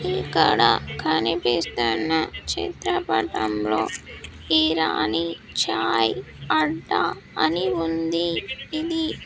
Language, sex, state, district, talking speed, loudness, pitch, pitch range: Telugu, female, Andhra Pradesh, Sri Satya Sai, 60 wpm, -23 LUFS, 155 Hz, 115-165 Hz